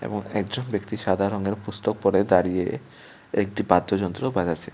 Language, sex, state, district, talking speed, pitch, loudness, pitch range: Bengali, male, Tripura, West Tripura, 140 wpm, 100 Hz, -24 LUFS, 95-105 Hz